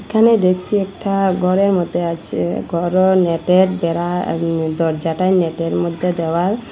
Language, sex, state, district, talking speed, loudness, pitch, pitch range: Bengali, female, Assam, Hailakandi, 125 wpm, -17 LUFS, 180 Hz, 170-190 Hz